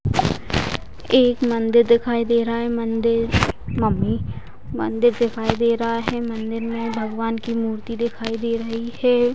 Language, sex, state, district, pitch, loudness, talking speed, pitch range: Hindi, female, Bihar, Purnia, 230 Hz, -21 LUFS, 140 wpm, 230-235 Hz